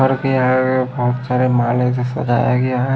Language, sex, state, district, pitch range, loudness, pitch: Hindi, male, Odisha, Khordha, 125-130 Hz, -17 LUFS, 125 Hz